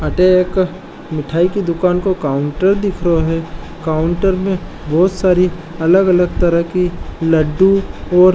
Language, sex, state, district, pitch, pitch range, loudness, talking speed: Marwari, male, Rajasthan, Nagaur, 180 Hz, 165-185 Hz, -15 LUFS, 145 wpm